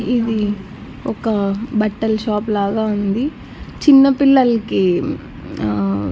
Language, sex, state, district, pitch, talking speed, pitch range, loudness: Telugu, female, Andhra Pradesh, Annamaya, 215 Hz, 80 wpm, 200-230 Hz, -17 LUFS